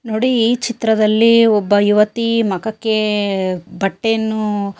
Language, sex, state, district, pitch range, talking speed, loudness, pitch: Kannada, female, Karnataka, Shimoga, 205-230 Hz, 100 wpm, -16 LUFS, 215 Hz